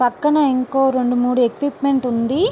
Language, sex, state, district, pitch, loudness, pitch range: Telugu, female, Andhra Pradesh, Srikakulam, 260 Hz, -17 LUFS, 245-285 Hz